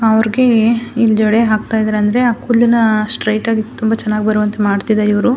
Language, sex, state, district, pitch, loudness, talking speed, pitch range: Kannada, female, Karnataka, Dakshina Kannada, 220 Hz, -14 LUFS, 180 wpm, 215-230 Hz